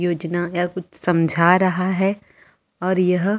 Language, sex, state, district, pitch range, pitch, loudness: Hindi, female, Chhattisgarh, Jashpur, 175-185 Hz, 180 Hz, -20 LUFS